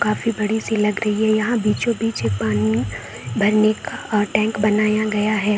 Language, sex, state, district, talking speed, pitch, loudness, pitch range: Hindi, female, Bihar, Saran, 170 wpm, 210 Hz, -20 LUFS, 205-215 Hz